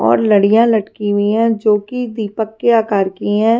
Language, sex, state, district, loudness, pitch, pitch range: Hindi, female, Himachal Pradesh, Shimla, -15 LUFS, 215 Hz, 205-225 Hz